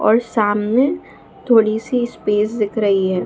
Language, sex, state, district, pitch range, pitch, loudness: Hindi, female, Bihar, Saharsa, 210-240 Hz, 220 Hz, -17 LUFS